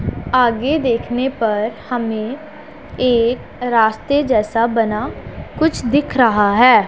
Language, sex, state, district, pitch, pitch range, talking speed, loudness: Hindi, female, Punjab, Pathankot, 245 Hz, 225-270 Hz, 105 wpm, -17 LUFS